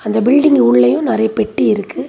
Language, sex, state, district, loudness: Tamil, female, Tamil Nadu, Kanyakumari, -13 LUFS